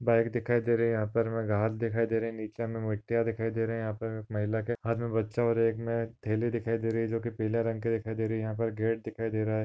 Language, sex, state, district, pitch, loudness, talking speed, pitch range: Hindi, male, Maharashtra, Nagpur, 115 Hz, -31 LUFS, 310 wpm, 110-115 Hz